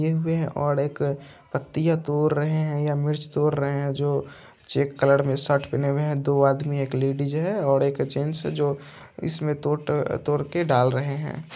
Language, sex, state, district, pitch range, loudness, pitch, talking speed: Hindi, male, Andhra Pradesh, Chittoor, 140-150 Hz, -24 LUFS, 145 Hz, 175 wpm